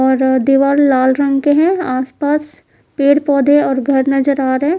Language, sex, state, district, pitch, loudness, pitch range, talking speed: Hindi, female, Bihar, Kaimur, 275 Hz, -13 LUFS, 265-290 Hz, 190 wpm